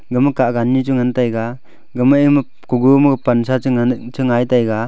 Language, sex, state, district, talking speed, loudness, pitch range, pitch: Wancho, male, Arunachal Pradesh, Longding, 195 wpm, -15 LUFS, 120-130 Hz, 125 Hz